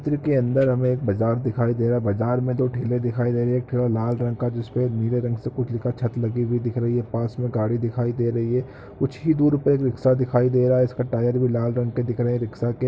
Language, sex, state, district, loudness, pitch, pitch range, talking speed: Hindi, male, Chhattisgarh, Korba, -23 LUFS, 120 Hz, 120-125 Hz, 300 wpm